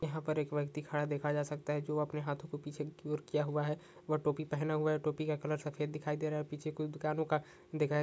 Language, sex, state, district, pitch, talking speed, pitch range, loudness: Hindi, male, Chhattisgarh, Sukma, 150 Hz, 275 wpm, 150-155 Hz, -37 LUFS